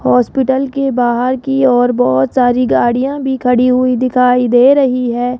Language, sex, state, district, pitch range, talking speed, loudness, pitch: Hindi, female, Rajasthan, Jaipur, 245-265 Hz, 165 wpm, -12 LUFS, 250 Hz